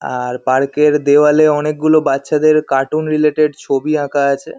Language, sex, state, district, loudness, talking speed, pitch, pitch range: Bengali, male, West Bengal, Kolkata, -14 LUFS, 145 wpm, 150 Hz, 140-155 Hz